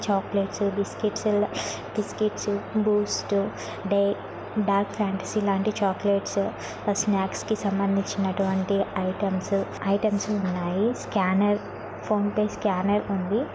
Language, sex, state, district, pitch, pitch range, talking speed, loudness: Telugu, female, Telangana, Nalgonda, 200 Hz, 195-210 Hz, 90 wpm, -26 LUFS